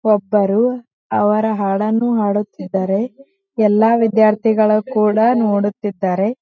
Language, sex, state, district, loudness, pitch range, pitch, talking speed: Kannada, female, Karnataka, Gulbarga, -16 LUFS, 205-225 Hz, 215 Hz, 85 wpm